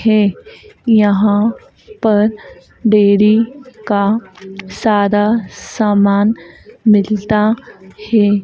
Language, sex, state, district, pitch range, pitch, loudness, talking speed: Hindi, female, Madhya Pradesh, Dhar, 205-225 Hz, 210 Hz, -14 LUFS, 65 wpm